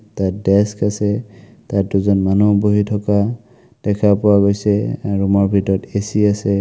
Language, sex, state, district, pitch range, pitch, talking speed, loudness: Assamese, male, Assam, Kamrup Metropolitan, 100-105 Hz, 105 Hz, 155 wpm, -17 LUFS